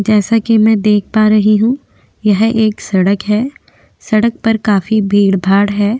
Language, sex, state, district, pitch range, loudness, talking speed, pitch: Hindi, female, Maharashtra, Aurangabad, 205-220 Hz, -12 LUFS, 170 wpm, 215 Hz